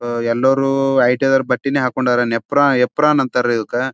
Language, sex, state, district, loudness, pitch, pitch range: Kannada, male, Karnataka, Bijapur, -16 LUFS, 130 Hz, 120-135 Hz